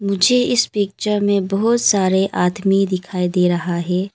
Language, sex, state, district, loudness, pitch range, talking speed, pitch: Hindi, female, Arunachal Pradesh, Longding, -17 LUFS, 180-205 Hz, 160 wpm, 195 Hz